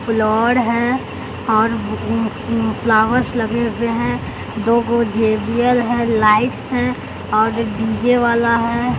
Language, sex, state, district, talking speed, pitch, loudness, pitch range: Hindi, male, Bihar, Katihar, 125 wpm, 230 Hz, -17 LUFS, 220-240 Hz